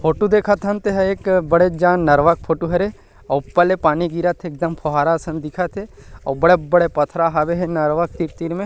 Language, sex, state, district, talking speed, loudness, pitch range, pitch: Chhattisgarhi, male, Chhattisgarh, Rajnandgaon, 220 wpm, -18 LUFS, 160-180 Hz, 170 Hz